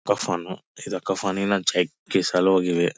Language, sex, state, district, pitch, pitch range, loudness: Kannada, male, Karnataka, Bellary, 95 Hz, 90-95 Hz, -23 LUFS